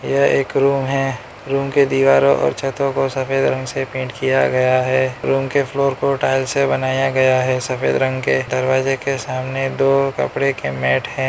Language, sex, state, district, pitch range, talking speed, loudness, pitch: Hindi, male, Arunachal Pradesh, Lower Dibang Valley, 130-135 Hz, 195 wpm, -18 LUFS, 135 Hz